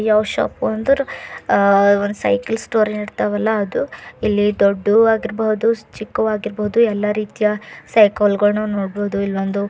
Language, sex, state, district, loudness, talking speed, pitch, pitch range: Kannada, female, Karnataka, Bidar, -18 LUFS, 110 wpm, 210 Hz, 205-220 Hz